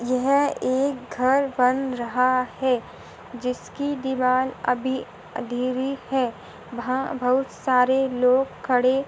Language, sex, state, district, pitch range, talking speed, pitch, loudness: Hindi, female, Maharashtra, Sindhudurg, 250-265 Hz, 105 wpm, 255 Hz, -23 LUFS